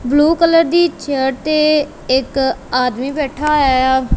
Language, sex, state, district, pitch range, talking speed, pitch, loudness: Punjabi, female, Punjab, Kapurthala, 260-305 Hz, 145 wpm, 285 Hz, -15 LUFS